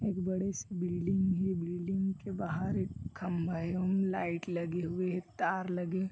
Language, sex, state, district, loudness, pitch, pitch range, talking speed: Chhattisgarhi, male, Chhattisgarh, Bilaspur, -34 LUFS, 185 Hz, 175-190 Hz, 195 wpm